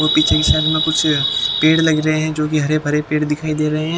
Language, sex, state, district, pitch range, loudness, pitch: Hindi, male, Haryana, Jhajjar, 150-155 Hz, -16 LUFS, 155 Hz